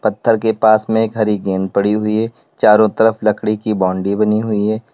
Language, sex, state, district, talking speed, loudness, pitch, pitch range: Hindi, male, Uttar Pradesh, Lalitpur, 220 wpm, -15 LUFS, 110 Hz, 105-110 Hz